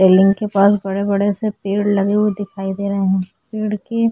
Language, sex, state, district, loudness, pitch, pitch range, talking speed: Hindi, female, Maharashtra, Aurangabad, -17 LUFS, 200 Hz, 195-210 Hz, 205 wpm